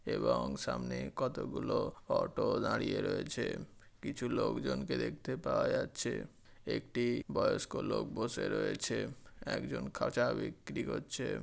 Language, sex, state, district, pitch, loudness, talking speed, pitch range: Bengali, male, West Bengal, Jhargram, 65 Hz, -36 LUFS, 105 wpm, 60-70 Hz